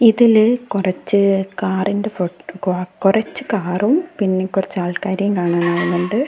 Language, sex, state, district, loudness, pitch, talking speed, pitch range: Malayalam, female, Kerala, Kasaragod, -18 LUFS, 195 Hz, 105 wpm, 180-215 Hz